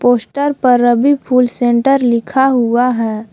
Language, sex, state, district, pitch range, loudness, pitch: Hindi, female, Jharkhand, Palamu, 235-265 Hz, -13 LUFS, 245 Hz